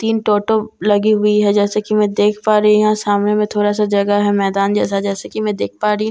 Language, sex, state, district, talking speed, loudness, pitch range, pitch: Hindi, female, Bihar, Katihar, 275 wpm, -15 LUFS, 205-215 Hz, 210 Hz